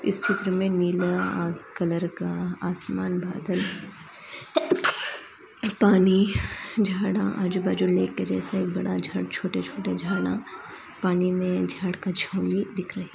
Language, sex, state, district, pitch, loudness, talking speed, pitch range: Hindi, female, Andhra Pradesh, Anantapur, 180 Hz, -26 LUFS, 130 wpm, 145-195 Hz